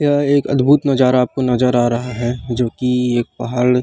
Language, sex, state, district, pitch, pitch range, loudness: Chhattisgarhi, male, Chhattisgarh, Rajnandgaon, 125 Hz, 120-135 Hz, -16 LUFS